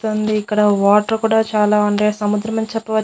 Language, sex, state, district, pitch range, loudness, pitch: Telugu, female, Andhra Pradesh, Annamaya, 210-220 Hz, -16 LUFS, 215 Hz